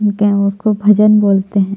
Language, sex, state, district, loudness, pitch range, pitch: Hindi, female, Chhattisgarh, Jashpur, -12 LUFS, 200-210 Hz, 205 Hz